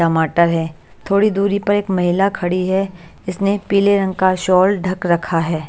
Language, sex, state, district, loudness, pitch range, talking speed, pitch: Hindi, female, Chhattisgarh, Raipur, -17 LUFS, 170-200 Hz, 180 wpm, 185 Hz